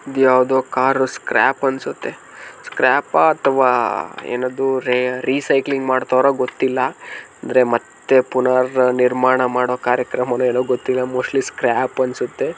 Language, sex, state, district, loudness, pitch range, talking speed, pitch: Kannada, male, Karnataka, Mysore, -17 LUFS, 125-130 Hz, 110 wpm, 130 Hz